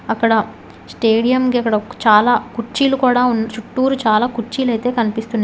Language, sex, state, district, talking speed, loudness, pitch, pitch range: Telugu, female, Telangana, Hyderabad, 120 wpm, -16 LUFS, 235 Hz, 225-250 Hz